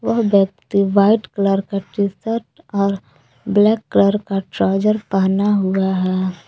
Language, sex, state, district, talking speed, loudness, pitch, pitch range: Hindi, female, Jharkhand, Palamu, 130 wpm, -17 LUFS, 200 Hz, 190-205 Hz